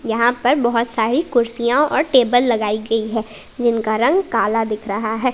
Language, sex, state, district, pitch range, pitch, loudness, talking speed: Hindi, female, Jharkhand, Palamu, 220-250 Hz, 235 Hz, -17 LUFS, 180 wpm